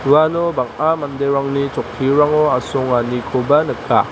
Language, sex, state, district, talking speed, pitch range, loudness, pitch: Garo, male, Meghalaya, West Garo Hills, 85 wpm, 130-150 Hz, -17 LUFS, 140 Hz